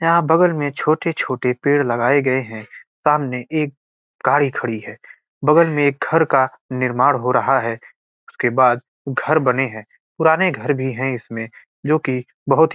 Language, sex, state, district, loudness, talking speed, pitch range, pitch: Hindi, male, Bihar, Gopalganj, -18 LUFS, 175 wpm, 125-155 Hz, 135 Hz